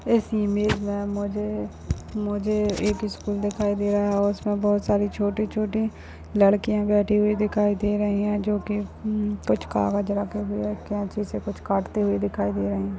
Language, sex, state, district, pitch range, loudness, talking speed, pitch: Hindi, male, Maharashtra, Nagpur, 200-210 Hz, -25 LUFS, 165 wpm, 205 Hz